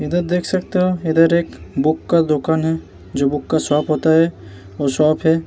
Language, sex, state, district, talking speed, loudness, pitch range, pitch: Hindi, male, Bihar, Vaishali, 210 wpm, -17 LUFS, 150-170 Hz, 160 Hz